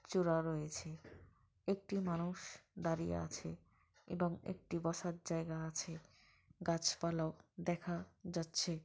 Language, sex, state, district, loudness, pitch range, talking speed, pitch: Bengali, female, West Bengal, Paschim Medinipur, -41 LUFS, 150-175 Hz, 95 wpm, 165 Hz